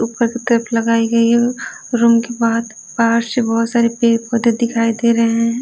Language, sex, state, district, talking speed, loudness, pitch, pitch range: Hindi, female, Delhi, New Delhi, 205 wpm, -16 LUFS, 230 Hz, 230-235 Hz